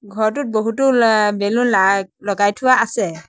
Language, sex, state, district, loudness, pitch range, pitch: Assamese, male, Assam, Sonitpur, -16 LUFS, 200-235 Hz, 215 Hz